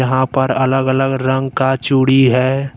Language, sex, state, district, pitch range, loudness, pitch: Hindi, male, Jharkhand, Deoghar, 130-135 Hz, -14 LUFS, 130 Hz